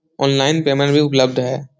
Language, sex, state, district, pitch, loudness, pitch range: Hindi, male, Bihar, Supaul, 140 Hz, -16 LUFS, 130-150 Hz